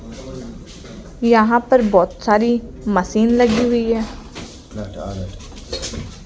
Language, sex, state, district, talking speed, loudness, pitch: Hindi, female, Rajasthan, Jaipur, 75 wpm, -17 LUFS, 215 Hz